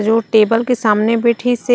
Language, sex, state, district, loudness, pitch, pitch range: Chhattisgarhi, female, Chhattisgarh, Raigarh, -14 LUFS, 230 Hz, 220-245 Hz